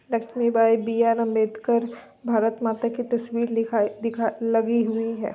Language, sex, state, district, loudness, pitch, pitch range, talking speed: Hindi, female, Uttar Pradesh, Muzaffarnagar, -23 LUFS, 230 Hz, 225-235 Hz, 170 wpm